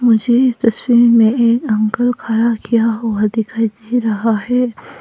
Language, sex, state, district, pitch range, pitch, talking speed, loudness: Hindi, female, Arunachal Pradesh, Papum Pare, 225-240 Hz, 230 Hz, 155 wpm, -15 LUFS